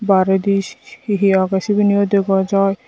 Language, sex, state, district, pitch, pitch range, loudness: Chakma, female, Tripura, Dhalai, 195 Hz, 190-200 Hz, -16 LUFS